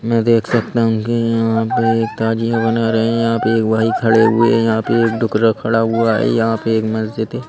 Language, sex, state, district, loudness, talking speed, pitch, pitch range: Hindi, male, Madhya Pradesh, Bhopal, -16 LUFS, 250 wpm, 115 Hz, 110-115 Hz